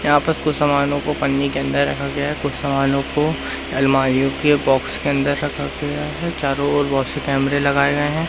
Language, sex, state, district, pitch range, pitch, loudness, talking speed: Hindi, male, Madhya Pradesh, Katni, 135-145 Hz, 140 Hz, -19 LUFS, 210 wpm